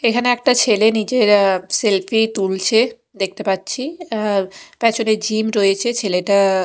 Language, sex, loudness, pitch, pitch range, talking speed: Bengali, female, -17 LUFS, 215 Hz, 195-235 Hz, 125 wpm